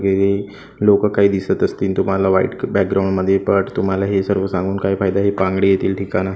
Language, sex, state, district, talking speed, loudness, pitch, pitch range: Marathi, male, Maharashtra, Gondia, 180 wpm, -17 LUFS, 95 Hz, 95-100 Hz